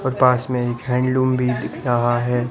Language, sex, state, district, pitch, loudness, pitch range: Hindi, male, Rajasthan, Barmer, 125 Hz, -20 LUFS, 120-130 Hz